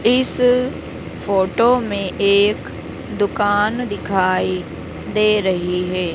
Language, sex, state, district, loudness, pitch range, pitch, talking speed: Hindi, female, Madhya Pradesh, Dhar, -18 LUFS, 185-230 Hz, 205 Hz, 90 wpm